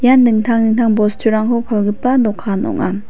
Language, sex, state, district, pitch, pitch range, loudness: Garo, female, Meghalaya, West Garo Hills, 220 Hz, 210-235 Hz, -15 LUFS